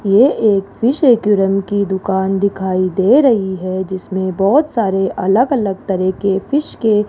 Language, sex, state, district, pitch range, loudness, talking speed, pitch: Hindi, female, Rajasthan, Jaipur, 190-215 Hz, -15 LUFS, 170 wpm, 195 Hz